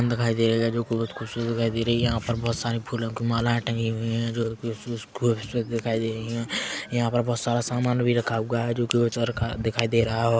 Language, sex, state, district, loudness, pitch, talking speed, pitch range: Hindi, male, Chhattisgarh, Korba, -26 LUFS, 115 Hz, 255 wpm, 115-120 Hz